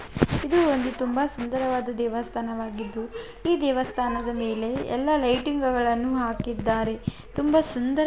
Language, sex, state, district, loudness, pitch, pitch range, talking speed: Kannada, female, Karnataka, Belgaum, -26 LUFS, 250 Hz, 235-280 Hz, 95 wpm